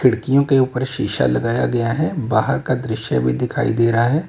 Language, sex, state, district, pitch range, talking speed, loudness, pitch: Hindi, male, Uttar Pradesh, Lalitpur, 110-135 Hz, 225 wpm, -18 LUFS, 125 Hz